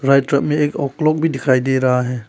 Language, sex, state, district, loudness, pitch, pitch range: Hindi, male, Arunachal Pradesh, Papum Pare, -17 LUFS, 140 Hz, 130-150 Hz